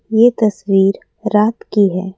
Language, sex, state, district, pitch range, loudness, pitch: Hindi, female, Assam, Kamrup Metropolitan, 195-220 Hz, -15 LUFS, 210 Hz